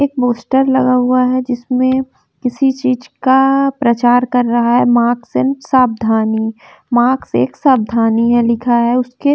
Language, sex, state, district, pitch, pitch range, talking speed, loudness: Hindi, female, Bihar, West Champaran, 250 Hz, 235-260 Hz, 155 wpm, -14 LUFS